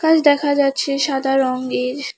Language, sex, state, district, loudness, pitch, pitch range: Bengali, female, West Bengal, Alipurduar, -18 LUFS, 275 Hz, 270-290 Hz